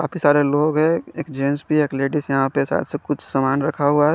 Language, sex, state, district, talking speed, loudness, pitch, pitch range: Hindi, male, Chandigarh, Chandigarh, 275 wpm, -20 LUFS, 145 Hz, 140-155 Hz